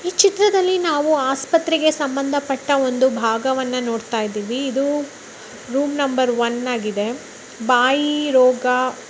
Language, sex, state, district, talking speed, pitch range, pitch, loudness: Kannada, male, Karnataka, Bellary, 105 wpm, 250-290 Hz, 265 Hz, -19 LUFS